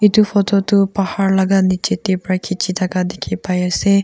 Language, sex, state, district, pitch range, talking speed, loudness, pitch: Nagamese, female, Nagaland, Kohima, 185-200 Hz, 195 wpm, -17 LUFS, 190 Hz